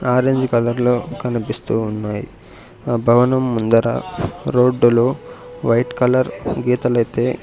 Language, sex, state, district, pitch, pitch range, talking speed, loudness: Telugu, male, Andhra Pradesh, Sri Satya Sai, 120 Hz, 115-125 Hz, 120 wpm, -18 LUFS